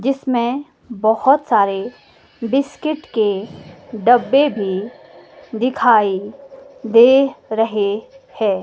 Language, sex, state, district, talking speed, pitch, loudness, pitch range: Hindi, female, Himachal Pradesh, Shimla, 75 wpm, 240 Hz, -17 LUFS, 215-270 Hz